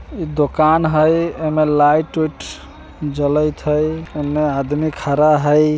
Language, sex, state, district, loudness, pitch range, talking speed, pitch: Bajjika, male, Bihar, Vaishali, -17 LUFS, 150-155 Hz, 145 wpm, 150 Hz